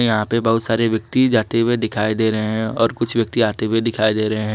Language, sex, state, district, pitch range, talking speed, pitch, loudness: Hindi, male, Jharkhand, Garhwa, 110-115 Hz, 265 wpm, 115 Hz, -18 LUFS